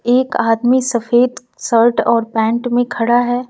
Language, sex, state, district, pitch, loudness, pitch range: Hindi, female, Uttar Pradesh, Lucknow, 240 Hz, -15 LUFS, 230-245 Hz